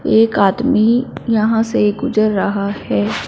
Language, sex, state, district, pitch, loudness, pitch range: Hindi, female, Punjab, Fazilka, 215 Hz, -15 LUFS, 200-230 Hz